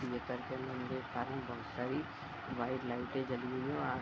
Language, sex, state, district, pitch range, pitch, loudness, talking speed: Hindi, male, Uttar Pradesh, Budaun, 125-130 Hz, 130 Hz, -40 LUFS, 255 wpm